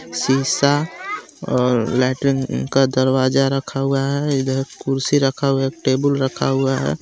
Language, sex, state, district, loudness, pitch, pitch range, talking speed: Hindi, male, Jharkhand, Garhwa, -19 LUFS, 135 Hz, 130-140 Hz, 155 wpm